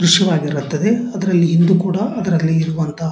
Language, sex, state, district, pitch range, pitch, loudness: Kannada, male, Karnataka, Dharwad, 160-195 Hz, 175 Hz, -16 LUFS